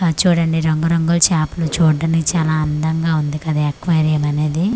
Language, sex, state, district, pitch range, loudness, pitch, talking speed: Telugu, female, Andhra Pradesh, Manyam, 155-165 Hz, -17 LUFS, 160 Hz, 150 wpm